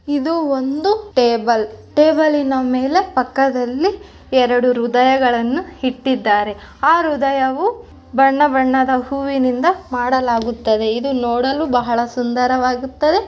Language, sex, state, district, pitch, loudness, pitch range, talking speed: Kannada, female, Karnataka, Bellary, 260 Hz, -16 LUFS, 245-295 Hz, 90 wpm